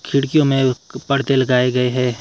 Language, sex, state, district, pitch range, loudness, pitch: Hindi, male, Himachal Pradesh, Shimla, 125-140 Hz, -17 LUFS, 130 Hz